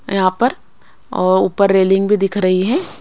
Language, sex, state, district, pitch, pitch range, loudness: Hindi, female, Maharashtra, Mumbai Suburban, 195 Hz, 185-200 Hz, -15 LUFS